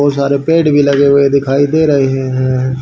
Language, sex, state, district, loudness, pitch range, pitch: Hindi, male, Haryana, Rohtak, -11 LUFS, 135-145 Hz, 140 Hz